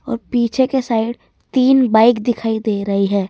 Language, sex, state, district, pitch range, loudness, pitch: Hindi, female, Rajasthan, Jaipur, 220-255 Hz, -16 LUFS, 235 Hz